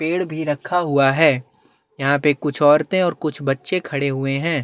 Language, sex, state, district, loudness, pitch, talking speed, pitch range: Hindi, male, Chhattisgarh, Bastar, -19 LUFS, 150 Hz, 195 wpm, 140-165 Hz